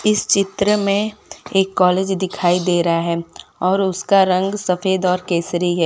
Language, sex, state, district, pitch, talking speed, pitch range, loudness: Hindi, female, Gujarat, Valsad, 185 Hz, 165 wpm, 175-195 Hz, -18 LUFS